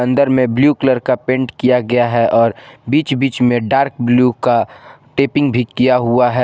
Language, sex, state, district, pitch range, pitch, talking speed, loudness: Hindi, male, Jharkhand, Garhwa, 120-135 Hz, 125 Hz, 195 wpm, -14 LUFS